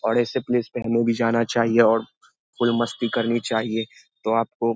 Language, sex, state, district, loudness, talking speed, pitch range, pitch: Hindi, male, Bihar, Lakhisarai, -22 LUFS, 200 wpm, 115-120 Hz, 115 Hz